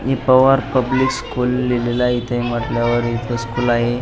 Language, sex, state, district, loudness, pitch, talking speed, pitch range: Marathi, male, Maharashtra, Pune, -17 LUFS, 120 Hz, 180 wpm, 120-130 Hz